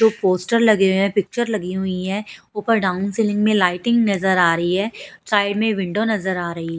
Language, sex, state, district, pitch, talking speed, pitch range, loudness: Hindi, female, Punjab, Pathankot, 200 Hz, 220 wpm, 185-215 Hz, -19 LUFS